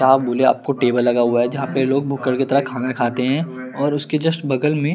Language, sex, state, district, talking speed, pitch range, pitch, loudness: Hindi, male, Chandigarh, Chandigarh, 240 wpm, 125-140 Hz, 130 Hz, -19 LUFS